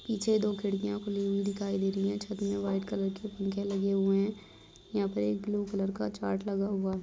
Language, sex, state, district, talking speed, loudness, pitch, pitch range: Hindi, female, Uttar Pradesh, Muzaffarnagar, 240 wpm, -32 LUFS, 200 Hz, 195-205 Hz